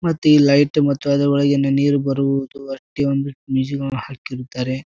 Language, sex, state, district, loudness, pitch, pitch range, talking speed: Kannada, male, Karnataka, Bijapur, -18 LUFS, 140 Hz, 135-140 Hz, 135 wpm